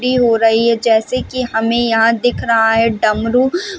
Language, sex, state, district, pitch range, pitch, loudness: Hindi, female, Chhattisgarh, Balrampur, 225-250 Hz, 230 Hz, -14 LUFS